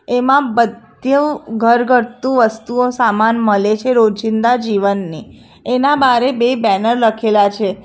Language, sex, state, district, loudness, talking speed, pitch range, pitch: Gujarati, female, Gujarat, Valsad, -14 LUFS, 115 wpm, 220-250 Hz, 235 Hz